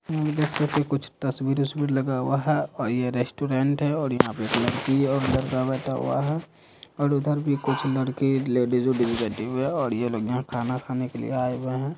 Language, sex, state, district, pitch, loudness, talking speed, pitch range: Hindi, male, Bihar, Saharsa, 135 Hz, -25 LUFS, 205 wpm, 125-140 Hz